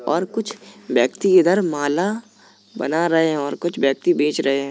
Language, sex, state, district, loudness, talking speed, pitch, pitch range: Hindi, male, Uttar Pradesh, Jalaun, -19 LUFS, 180 wpm, 170 Hz, 145-195 Hz